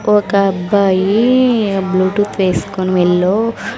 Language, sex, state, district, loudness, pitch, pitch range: Telugu, female, Andhra Pradesh, Sri Satya Sai, -14 LUFS, 195 Hz, 185-210 Hz